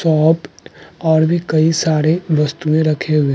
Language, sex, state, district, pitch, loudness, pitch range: Hindi, male, Uttarakhand, Tehri Garhwal, 155 Hz, -15 LUFS, 150-165 Hz